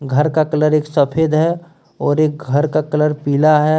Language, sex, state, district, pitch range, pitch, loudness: Hindi, male, Jharkhand, Deoghar, 150-155 Hz, 150 Hz, -16 LUFS